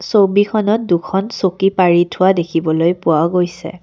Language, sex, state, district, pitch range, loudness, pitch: Assamese, female, Assam, Kamrup Metropolitan, 175-195 Hz, -15 LUFS, 180 Hz